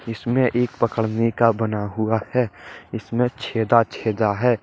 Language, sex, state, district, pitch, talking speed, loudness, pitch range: Hindi, male, Jharkhand, Deoghar, 115 Hz, 140 wpm, -21 LUFS, 110-125 Hz